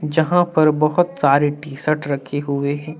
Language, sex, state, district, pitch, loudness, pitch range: Hindi, male, Jharkhand, Deoghar, 150 Hz, -18 LUFS, 145-155 Hz